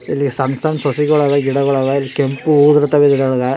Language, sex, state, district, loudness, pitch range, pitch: Kannada, male, Karnataka, Mysore, -14 LUFS, 135-145 Hz, 140 Hz